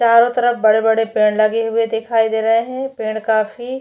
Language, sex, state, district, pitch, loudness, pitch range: Hindi, female, Chhattisgarh, Bastar, 225 Hz, -16 LUFS, 220-235 Hz